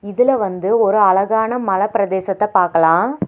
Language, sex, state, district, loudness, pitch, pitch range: Tamil, female, Tamil Nadu, Nilgiris, -16 LUFS, 200 Hz, 190-225 Hz